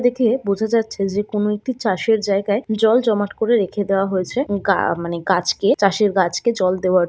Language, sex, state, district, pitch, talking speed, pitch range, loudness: Bengali, female, West Bengal, Kolkata, 205 Hz, 170 wpm, 195-225 Hz, -19 LUFS